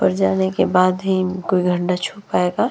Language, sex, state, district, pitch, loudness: Hindi, female, Bihar, Vaishali, 180 Hz, -19 LUFS